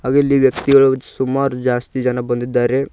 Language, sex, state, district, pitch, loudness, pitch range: Kannada, male, Karnataka, Koppal, 130 Hz, -16 LUFS, 125-135 Hz